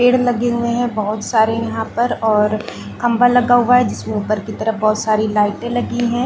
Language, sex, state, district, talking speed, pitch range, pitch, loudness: Hindi, female, Chhattisgarh, Balrampur, 220 wpm, 215-245 Hz, 225 Hz, -17 LUFS